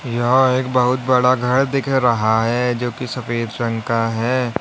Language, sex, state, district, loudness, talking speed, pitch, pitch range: Hindi, male, Uttar Pradesh, Lalitpur, -18 LUFS, 180 wpm, 125 Hz, 115-130 Hz